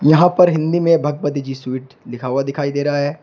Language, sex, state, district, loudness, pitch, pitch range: Hindi, male, Uttar Pradesh, Shamli, -17 LUFS, 145 Hz, 135-160 Hz